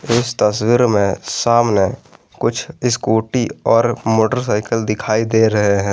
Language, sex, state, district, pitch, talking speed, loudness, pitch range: Hindi, male, Jharkhand, Garhwa, 115 Hz, 120 wpm, -16 LUFS, 105-120 Hz